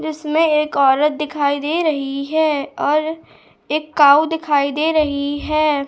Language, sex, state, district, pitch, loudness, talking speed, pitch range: Hindi, female, Goa, North and South Goa, 300 Hz, -17 LUFS, 145 wpm, 285-310 Hz